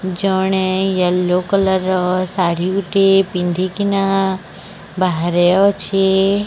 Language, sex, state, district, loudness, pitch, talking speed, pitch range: Odia, male, Odisha, Sambalpur, -16 LUFS, 190 Hz, 75 wpm, 180-195 Hz